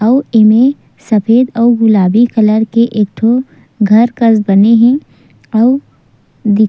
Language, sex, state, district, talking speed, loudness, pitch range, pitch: Chhattisgarhi, female, Chhattisgarh, Sukma, 125 wpm, -10 LUFS, 215-240 Hz, 230 Hz